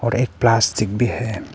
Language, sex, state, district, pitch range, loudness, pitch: Hindi, male, Arunachal Pradesh, Papum Pare, 105-120 Hz, -19 LUFS, 115 Hz